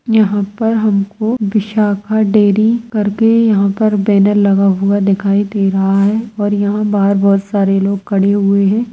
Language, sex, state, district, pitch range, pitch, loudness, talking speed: Hindi, female, Bihar, Jamui, 200-215 Hz, 205 Hz, -13 LUFS, 160 wpm